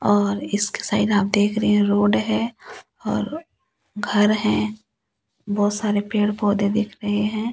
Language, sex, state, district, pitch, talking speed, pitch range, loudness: Hindi, female, Delhi, New Delhi, 205 Hz, 150 wpm, 205-210 Hz, -21 LUFS